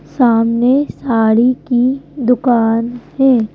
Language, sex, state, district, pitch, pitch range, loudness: Hindi, female, Madhya Pradesh, Bhopal, 245 Hz, 230-255 Hz, -14 LUFS